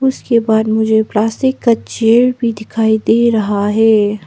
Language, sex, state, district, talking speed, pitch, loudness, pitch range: Hindi, female, Arunachal Pradesh, Papum Pare, 170 wpm, 220 Hz, -13 LUFS, 220-235 Hz